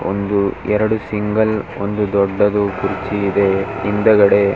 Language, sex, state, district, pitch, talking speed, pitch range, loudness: Kannada, male, Karnataka, Dharwad, 100 Hz, 120 wpm, 100-105 Hz, -17 LUFS